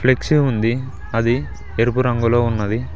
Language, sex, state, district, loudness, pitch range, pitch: Telugu, male, Telangana, Mahabubabad, -19 LUFS, 110-125 Hz, 120 Hz